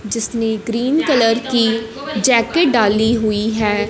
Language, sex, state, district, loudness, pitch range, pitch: Hindi, female, Punjab, Fazilka, -16 LUFS, 220-240 Hz, 225 Hz